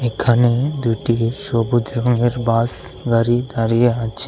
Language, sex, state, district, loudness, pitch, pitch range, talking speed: Bengali, male, Tripura, West Tripura, -18 LUFS, 120 Hz, 115-120 Hz, 110 wpm